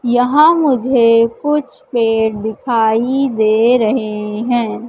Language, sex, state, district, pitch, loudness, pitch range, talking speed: Hindi, female, Madhya Pradesh, Katni, 235 Hz, -14 LUFS, 220-255 Hz, 100 wpm